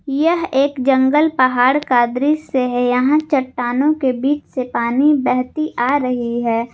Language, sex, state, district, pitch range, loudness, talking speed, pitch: Hindi, female, Jharkhand, Garhwa, 245-290 Hz, -16 LUFS, 150 wpm, 260 Hz